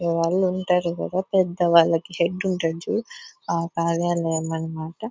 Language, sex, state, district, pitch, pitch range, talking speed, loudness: Telugu, female, Telangana, Nalgonda, 170 Hz, 165-185 Hz, 140 wpm, -23 LUFS